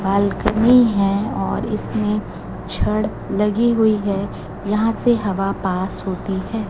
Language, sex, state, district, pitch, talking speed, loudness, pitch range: Hindi, female, Chhattisgarh, Raipur, 205 Hz, 125 wpm, -19 LUFS, 195-220 Hz